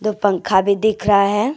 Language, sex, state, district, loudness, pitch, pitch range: Hindi, female, Jharkhand, Deoghar, -16 LUFS, 205 Hz, 200-215 Hz